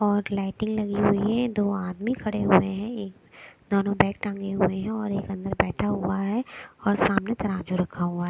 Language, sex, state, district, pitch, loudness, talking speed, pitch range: Hindi, female, Bihar, West Champaran, 200 Hz, -26 LUFS, 200 wpm, 190-210 Hz